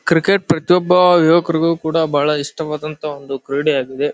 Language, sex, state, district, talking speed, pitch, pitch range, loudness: Kannada, male, Karnataka, Bijapur, 130 wpm, 160 Hz, 145-165 Hz, -16 LUFS